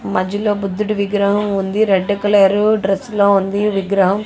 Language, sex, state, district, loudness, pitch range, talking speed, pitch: Telugu, female, Andhra Pradesh, Guntur, -16 LUFS, 195-210 Hz, 140 wpm, 200 Hz